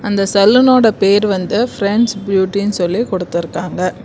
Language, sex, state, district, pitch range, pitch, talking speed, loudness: Tamil, female, Karnataka, Bangalore, 185-220 Hz, 200 Hz, 120 wpm, -14 LUFS